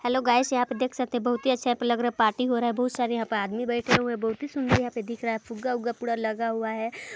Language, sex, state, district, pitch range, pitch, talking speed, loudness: Hindi, female, Chhattisgarh, Balrampur, 230-250 Hz, 240 Hz, 335 wpm, -26 LUFS